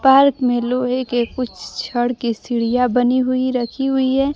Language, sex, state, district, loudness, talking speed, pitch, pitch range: Hindi, female, Bihar, Kaimur, -18 LUFS, 180 wpm, 250 Hz, 240-260 Hz